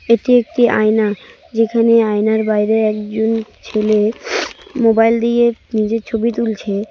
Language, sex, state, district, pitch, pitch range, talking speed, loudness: Bengali, female, West Bengal, Cooch Behar, 225 Hz, 215-235 Hz, 115 wpm, -15 LUFS